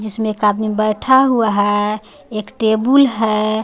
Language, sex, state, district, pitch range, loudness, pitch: Hindi, female, Jharkhand, Garhwa, 215-225 Hz, -15 LUFS, 215 Hz